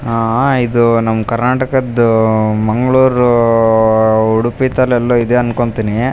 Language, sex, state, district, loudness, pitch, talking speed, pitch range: Kannada, male, Karnataka, Raichur, -12 LUFS, 120 Hz, 125 wpm, 110-125 Hz